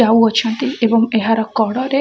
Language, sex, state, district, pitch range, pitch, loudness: Odia, female, Odisha, Khordha, 225-250 Hz, 230 Hz, -15 LUFS